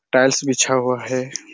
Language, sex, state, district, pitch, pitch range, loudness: Hindi, male, Chhattisgarh, Raigarh, 130 Hz, 130-135 Hz, -18 LUFS